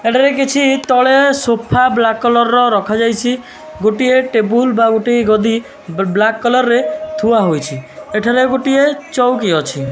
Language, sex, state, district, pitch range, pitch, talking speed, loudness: Odia, male, Odisha, Malkangiri, 220-260 Hz, 240 Hz, 120 wpm, -13 LUFS